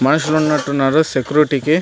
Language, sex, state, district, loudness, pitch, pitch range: Telugu, male, Andhra Pradesh, Anantapur, -16 LUFS, 150 Hz, 140-155 Hz